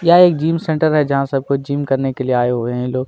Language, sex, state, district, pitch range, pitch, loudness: Hindi, male, Chhattisgarh, Kabirdham, 130-155 Hz, 140 Hz, -16 LUFS